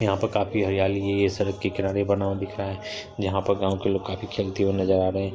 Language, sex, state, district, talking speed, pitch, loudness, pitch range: Hindi, male, Bihar, Saharsa, 270 wpm, 100 Hz, -25 LUFS, 95-100 Hz